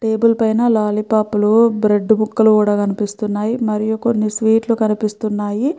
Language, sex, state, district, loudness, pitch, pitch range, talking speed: Telugu, female, Andhra Pradesh, Chittoor, -16 LUFS, 215 Hz, 210-225 Hz, 125 wpm